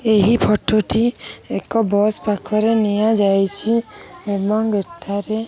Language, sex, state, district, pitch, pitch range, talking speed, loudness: Odia, female, Odisha, Khordha, 215 Hz, 200-220 Hz, 110 wpm, -18 LUFS